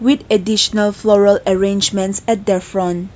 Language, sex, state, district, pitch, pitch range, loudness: English, female, Nagaland, Kohima, 200 Hz, 195-215 Hz, -15 LUFS